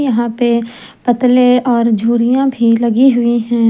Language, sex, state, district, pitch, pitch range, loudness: Hindi, female, Jharkhand, Garhwa, 235 Hz, 235-250 Hz, -12 LUFS